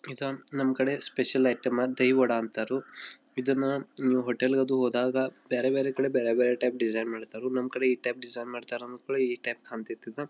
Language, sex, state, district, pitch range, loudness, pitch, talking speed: Kannada, male, Karnataka, Belgaum, 125-130 Hz, -29 LUFS, 130 Hz, 175 wpm